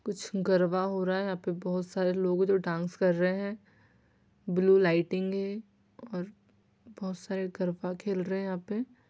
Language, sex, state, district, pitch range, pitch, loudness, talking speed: Hindi, female, Bihar, Saran, 180-195 Hz, 185 Hz, -30 LUFS, 180 wpm